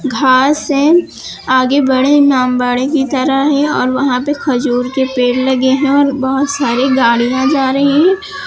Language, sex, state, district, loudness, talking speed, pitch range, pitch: Hindi, female, Uttar Pradesh, Lucknow, -12 LUFS, 165 wpm, 255-285 Hz, 265 Hz